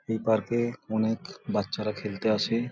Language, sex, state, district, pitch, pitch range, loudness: Bengali, male, West Bengal, Jhargram, 110 Hz, 105-115 Hz, -29 LUFS